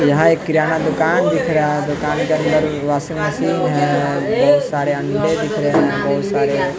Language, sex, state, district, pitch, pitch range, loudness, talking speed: Hindi, male, Bihar, West Champaran, 155 Hz, 145-160 Hz, -17 LUFS, 195 wpm